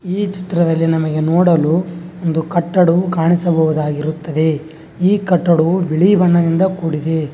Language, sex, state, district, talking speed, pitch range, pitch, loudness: Kannada, male, Karnataka, Bangalore, 100 wpm, 160-180 Hz, 170 Hz, -15 LUFS